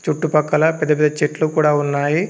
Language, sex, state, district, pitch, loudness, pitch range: Telugu, male, Telangana, Komaram Bheem, 150 Hz, -17 LUFS, 150-155 Hz